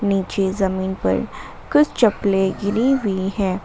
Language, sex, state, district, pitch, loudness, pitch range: Hindi, female, Jharkhand, Garhwa, 195 Hz, -20 LUFS, 190-210 Hz